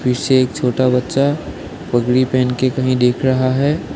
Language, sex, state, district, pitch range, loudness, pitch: Hindi, male, Assam, Sonitpur, 125-130 Hz, -16 LUFS, 130 Hz